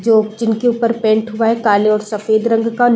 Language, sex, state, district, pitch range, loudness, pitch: Hindi, female, Uttar Pradesh, Deoria, 215-230 Hz, -15 LUFS, 225 Hz